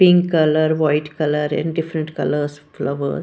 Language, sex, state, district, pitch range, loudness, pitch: English, female, Punjab, Pathankot, 150-160 Hz, -19 LUFS, 155 Hz